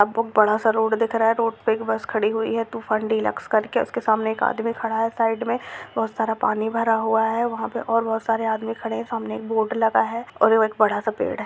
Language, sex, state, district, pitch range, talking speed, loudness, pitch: Hindi, female, Bihar, Purnia, 220-230 Hz, 290 wpm, -22 LUFS, 225 Hz